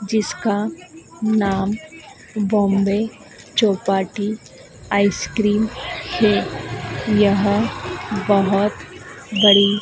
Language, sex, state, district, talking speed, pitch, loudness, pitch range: Hindi, female, Madhya Pradesh, Dhar, 60 wpm, 205 Hz, -19 LUFS, 200-215 Hz